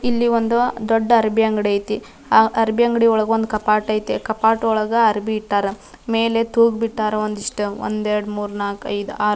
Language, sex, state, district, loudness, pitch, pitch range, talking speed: Kannada, female, Karnataka, Dharwad, -19 LUFS, 220 Hz, 210-230 Hz, 165 wpm